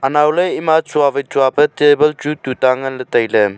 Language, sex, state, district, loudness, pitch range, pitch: Wancho, male, Arunachal Pradesh, Longding, -15 LUFS, 130-150 Hz, 140 Hz